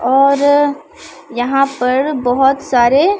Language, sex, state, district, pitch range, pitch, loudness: Maithili, female, Bihar, Samastipur, 250-285 Hz, 275 Hz, -13 LUFS